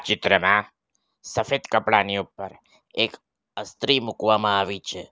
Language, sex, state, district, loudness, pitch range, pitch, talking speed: Gujarati, male, Gujarat, Valsad, -22 LUFS, 100-110 Hz, 105 Hz, 105 wpm